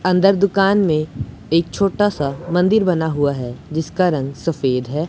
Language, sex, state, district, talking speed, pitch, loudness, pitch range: Hindi, male, Punjab, Pathankot, 165 wpm, 165 Hz, -18 LUFS, 140-195 Hz